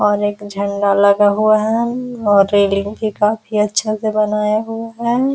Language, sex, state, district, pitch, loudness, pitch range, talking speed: Hindi, female, Bihar, Araria, 210 Hz, -16 LUFS, 205-220 Hz, 170 wpm